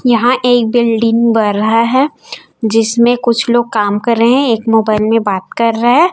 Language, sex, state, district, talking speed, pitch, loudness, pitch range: Hindi, female, Chhattisgarh, Raipur, 195 wpm, 230 Hz, -12 LUFS, 225-240 Hz